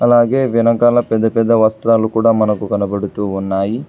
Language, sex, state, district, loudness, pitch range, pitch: Telugu, male, Telangana, Hyderabad, -14 LUFS, 105-115 Hz, 115 Hz